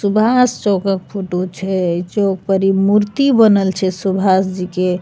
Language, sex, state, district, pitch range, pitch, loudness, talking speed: Maithili, female, Bihar, Begusarai, 185-205 Hz, 195 Hz, -15 LUFS, 145 wpm